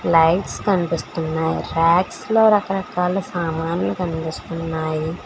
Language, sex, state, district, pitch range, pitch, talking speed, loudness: Telugu, female, Telangana, Hyderabad, 160-185 Hz, 170 Hz, 80 wpm, -20 LUFS